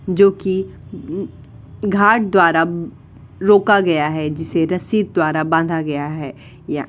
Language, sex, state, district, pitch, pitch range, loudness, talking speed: Hindi, female, Uttar Pradesh, Varanasi, 170 Hz, 155-195 Hz, -17 LUFS, 140 wpm